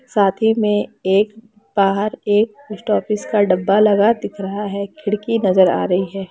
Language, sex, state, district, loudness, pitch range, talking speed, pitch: Hindi, female, Bihar, Lakhisarai, -17 LUFS, 195-215 Hz, 180 wpm, 210 Hz